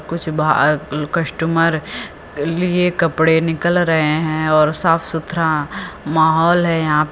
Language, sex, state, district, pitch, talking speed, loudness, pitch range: Hindi, female, Uttar Pradesh, Lucknow, 160 Hz, 120 wpm, -16 LUFS, 155-165 Hz